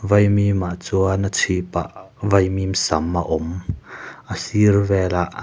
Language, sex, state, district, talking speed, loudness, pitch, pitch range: Mizo, male, Mizoram, Aizawl, 130 wpm, -20 LUFS, 95 Hz, 90-100 Hz